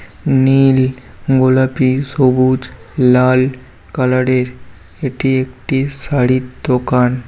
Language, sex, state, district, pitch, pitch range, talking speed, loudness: Bengali, male, West Bengal, Paschim Medinipur, 130 Hz, 125-130 Hz, 90 wpm, -14 LUFS